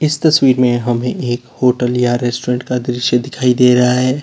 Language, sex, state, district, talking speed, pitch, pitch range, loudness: Hindi, male, Uttar Pradesh, Lalitpur, 200 wpm, 125 Hz, 125-130 Hz, -14 LUFS